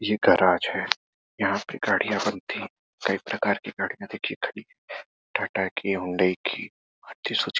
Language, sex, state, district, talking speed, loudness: Hindi, male, Uttar Pradesh, Gorakhpur, 175 wpm, -26 LUFS